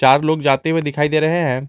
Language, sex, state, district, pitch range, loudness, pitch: Hindi, male, Jharkhand, Garhwa, 135-160 Hz, -17 LUFS, 150 Hz